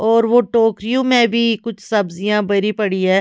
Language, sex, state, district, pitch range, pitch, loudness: Hindi, female, Chhattisgarh, Raipur, 205-230 Hz, 220 Hz, -16 LUFS